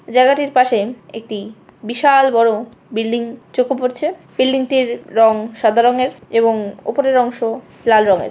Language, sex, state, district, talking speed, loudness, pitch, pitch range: Bengali, female, West Bengal, Kolkata, 130 wpm, -16 LUFS, 235 Hz, 225-260 Hz